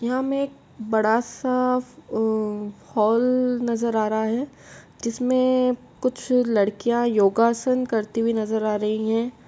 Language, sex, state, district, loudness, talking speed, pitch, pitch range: Hindi, female, Uttar Pradesh, Etah, -23 LUFS, 125 wpm, 235 Hz, 220-250 Hz